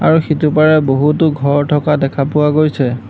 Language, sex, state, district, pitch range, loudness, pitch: Assamese, male, Assam, Hailakandi, 140-155 Hz, -13 LUFS, 150 Hz